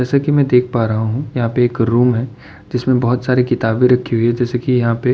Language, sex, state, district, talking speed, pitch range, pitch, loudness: Hindi, male, Delhi, New Delhi, 280 wpm, 120-125 Hz, 125 Hz, -16 LUFS